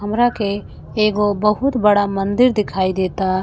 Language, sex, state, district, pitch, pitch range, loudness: Bhojpuri, female, Uttar Pradesh, Gorakhpur, 205 Hz, 195-215 Hz, -17 LUFS